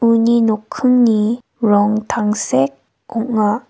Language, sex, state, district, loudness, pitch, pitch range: Garo, female, Meghalaya, West Garo Hills, -16 LUFS, 220 Hz, 210-235 Hz